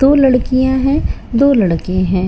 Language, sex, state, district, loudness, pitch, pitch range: Hindi, female, Bihar, Katihar, -13 LUFS, 255 Hz, 185-270 Hz